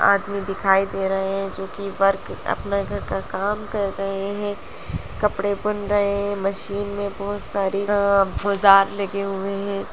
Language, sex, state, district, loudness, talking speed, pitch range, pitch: Hindi, female, Bihar, Lakhisarai, -22 LUFS, 170 wpm, 195-200 Hz, 200 Hz